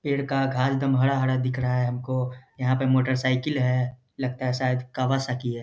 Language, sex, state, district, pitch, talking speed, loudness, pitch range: Hindi, male, Bihar, Jahanabad, 130 Hz, 225 wpm, -25 LUFS, 125-130 Hz